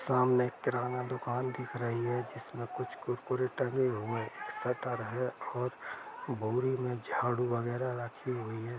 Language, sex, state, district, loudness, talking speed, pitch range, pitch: Hindi, male, Jharkhand, Jamtara, -35 LUFS, 150 wpm, 120-125 Hz, 125 Hz